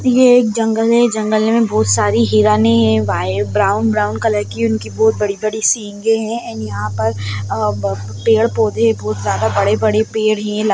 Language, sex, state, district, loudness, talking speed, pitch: Hindi, female, Bihar, Jamui, -15 LUFS, 180 wpm, 205 Hz